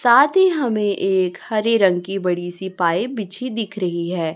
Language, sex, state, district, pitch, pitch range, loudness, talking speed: Hindi, female, Chhattisgarh, Raipur, 195 Hz, 180-230 Hz, -19 LUFS, 180 wpm